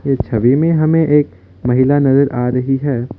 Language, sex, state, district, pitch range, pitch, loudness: Hindi, male, Assam, Kamrup Metropolitan, 125-145 Hz, 135 Hz, -14 LUFS